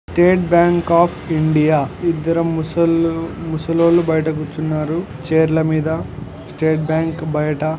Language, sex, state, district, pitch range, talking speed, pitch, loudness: Telugu, male, Andhra Pradesh, Anantapur, 155-170 Hz, 70 wpm, 160 Hz, -17 LUFS